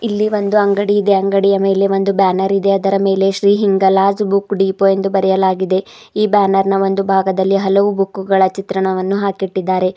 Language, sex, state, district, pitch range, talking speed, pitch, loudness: Kannada, female, Karnataka, Bidar, 190-200 Hz, 170 wpm, 195 Hz, -14 LUFS